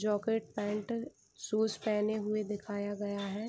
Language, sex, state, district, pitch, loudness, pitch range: Hindi, female, Bihar, Gopalganj, 210 Hz, -35 LUFS, 205-220 Hz